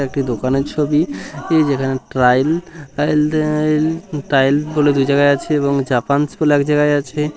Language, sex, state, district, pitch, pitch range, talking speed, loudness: Bengali, male, West Bengal, Kolkata, 145 Hz, 140-150 Hz, 120 wpm, -16 LUFS